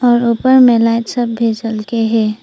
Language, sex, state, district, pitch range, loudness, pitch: Hindi, female, Arunachal Pradesh, Papum Pare, 225-240 Hz, -13 LUFS, 230 Hz